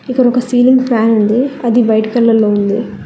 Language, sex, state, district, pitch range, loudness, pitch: Telugu, female, Telangana, Hyderabad, 220-250 Hz, -12 LUFS, 235 Hz